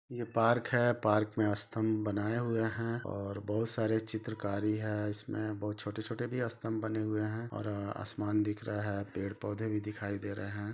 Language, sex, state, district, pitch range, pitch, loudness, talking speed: Hindi, male, Chhattisgarh, Rajnandgaon, 105-115 Hz, 110 Hz, -35 LUFS, 195 wpm